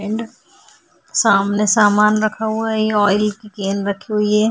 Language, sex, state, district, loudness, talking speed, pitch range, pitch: Hindi, female, Bihar, Vaishali, -17 LUFS, 215 wpm, 205-220 Hz, 210 Hz